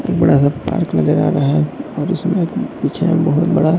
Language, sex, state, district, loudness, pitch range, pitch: Hindi, male, Chhattisgarh, Bilaspur, -16 LUFS, 145-180 Hz, 165 Hz